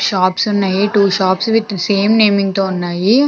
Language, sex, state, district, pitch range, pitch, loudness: Telugu, female, Andhra Pradesh, Chittoor, 190-210 Hz, 200 Hz, -14 LUFS